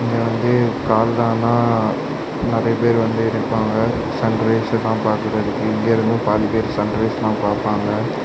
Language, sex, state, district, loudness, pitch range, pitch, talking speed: Tamil, male, Tamil Nadu, Kanyakumari, -18 LUFS, 110-115 Hz, 110 Hz, 115 wpm